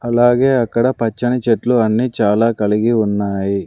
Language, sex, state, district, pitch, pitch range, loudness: Telugu, male, Andhra Pradesh, Sri Satya Sai, 115 Hz, 105-120 Hz, -15 LUFS